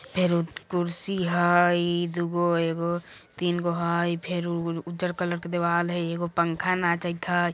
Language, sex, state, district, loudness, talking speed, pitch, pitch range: Bajjika, female, Bihar, Vaishali, -26 LUFS, 160 wpm, 175 Hz, 170-175 Hz